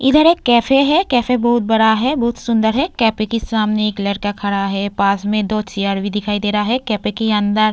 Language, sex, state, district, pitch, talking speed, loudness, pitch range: Hindi, female, Uttar Pradesh, Varanasi, 215 Hz, 240 wpm, -16 LUFS, 205-240 Hz